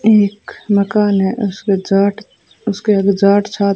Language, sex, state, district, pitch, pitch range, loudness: Hindi, female, Rajasthan, Bikaner, 200 Hz, 200-210 Hz, -15 LUFS